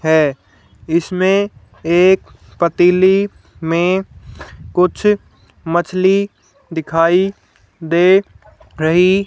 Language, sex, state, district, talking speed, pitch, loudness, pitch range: Hindi, female, Haryana, Charkhi Dadri, 65 wpm, 175 Hz, -15 LUFS, 160-190 Hz